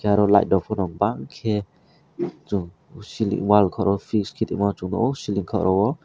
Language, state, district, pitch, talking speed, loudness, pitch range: Kokborok, Tripura, West Tripura, 100 Hz, 160 wpm, -22 LUFS, 95-105 Hz